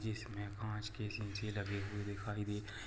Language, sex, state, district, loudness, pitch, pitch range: Hindi, male, Jharkhand, Sahebganj, -43 LUFS, 105 Hz, 100-105 Hz